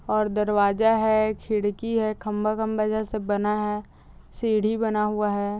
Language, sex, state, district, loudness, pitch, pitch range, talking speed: Hindi, female, Bihar, Saharsa, -24 LUFS, 215 Hz, 210-220 Hz, 140 wpm